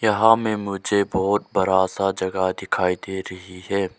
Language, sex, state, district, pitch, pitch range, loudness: Hindi, male, Arunachal Pradesh, Lower Dibang Valley, 95 Hz, 95-100 Hz, -22 LUFS